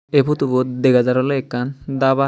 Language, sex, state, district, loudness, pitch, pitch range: Chakma, male, Tripura, Dhalai, -18 LUFS, 135 Hz, 130-140 Hz